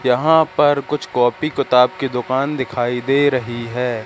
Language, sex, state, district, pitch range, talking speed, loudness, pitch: Hindi, male, Madhya Pradesh, Katni, 125-145 Hz, 160 wpm, -17 LUFS, 130 Hz